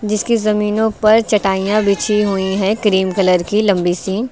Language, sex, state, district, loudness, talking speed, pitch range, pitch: Hindi, female, Uttar Pradesh, Lucknow, -15 LUFS, 165 wpm, 195-215 Hz, 210 Hz